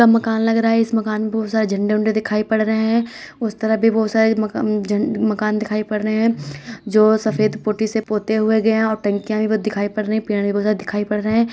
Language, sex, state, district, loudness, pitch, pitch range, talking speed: Hindi, female, Uttar Pradesh, Hamirpur, -19 LUFS, 215 Hz, 215-220 Hz, 260 wpm